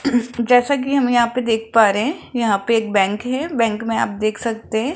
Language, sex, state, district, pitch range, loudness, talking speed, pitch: Hindi, male, Rajasthan, Jaipur, 220-250 Hz, -18 LUFS, 240 wpm, 235 Hz